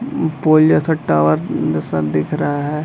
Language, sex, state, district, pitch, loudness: Hindi, male, Chhattisgarh, Bilaspur, 145 Hz, -16 LUFS